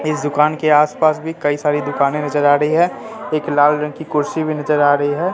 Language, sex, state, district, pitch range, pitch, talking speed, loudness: Hindi, male, Bihar, Katihar, 145-155 Hz, 150 Hz, 260 wpm, -16 LUFS